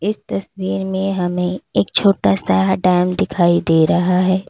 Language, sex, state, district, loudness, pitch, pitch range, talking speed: Hindi, female, Uttar Pradesh, Lalitpur, -17 LUFS, 180 Hz, 175-190 Hz, 175 wpm